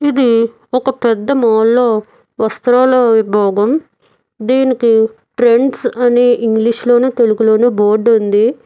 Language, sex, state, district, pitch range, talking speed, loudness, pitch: Telugu, female, Telangana, Hyderabad, 220-250 Hz, 90 wpm, -12 LUFS, 235 Hz